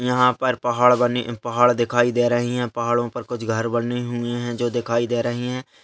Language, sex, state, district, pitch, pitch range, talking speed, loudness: Hindi, male, Uttarakhand, Tehri Garhwal, 120 Hz, 120-125 Hz, 215 wpm, -21 LUFS